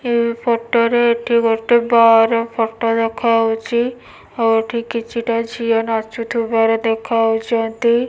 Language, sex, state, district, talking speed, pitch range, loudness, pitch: Odia, female, Odisha, Nuapada, 110 wpm, 225-235 Hz, -17 LUFS, 230 Hz